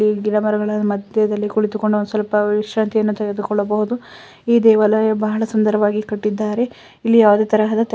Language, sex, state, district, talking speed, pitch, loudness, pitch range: Kannada, female, Karnataka, Dakshina Kannada, 120 wpm, 215 Hz, -17 LUFS, 210-220 Hz